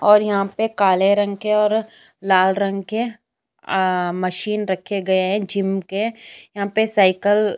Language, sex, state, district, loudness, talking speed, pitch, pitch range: Hindi, female, Uttar Pradesh, Jyotiba Phule Nagar, -19 LUFS, 175 wpm, 200 Hz, 190-210 Hz